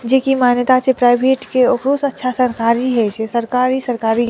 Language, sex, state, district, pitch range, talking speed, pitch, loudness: Maithili, female, Bihar, Madhepura, 235-260 Hz, 210 wpm, 250 Hz, -15 LUFS